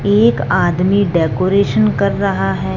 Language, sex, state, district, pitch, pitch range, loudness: Hindi, male, Punjab, Fazilka, 185 Hz, 170-200 Hz, -14 LUFS